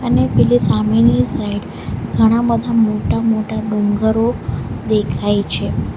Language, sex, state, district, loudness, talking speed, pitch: Gujarati, female, Gujarat, Valsad, -16 LUFS, 110 wpm, 205 Hz